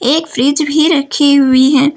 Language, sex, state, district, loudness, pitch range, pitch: Hindi, female, Uttar Pradesh, Lucknow, -11 LUFS, 275-305 Hz, 285 Hz